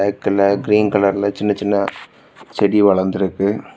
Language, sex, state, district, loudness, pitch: Tamil, male, Tamil Nadu, Kanyakumari, -17 LUFS, 100 Hz